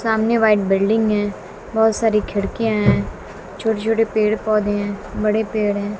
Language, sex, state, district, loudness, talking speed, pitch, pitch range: Hindi, female, Bihar, West Champaran, -19 LUFS, 160 wpm, 215 Hz, 205-220 Hz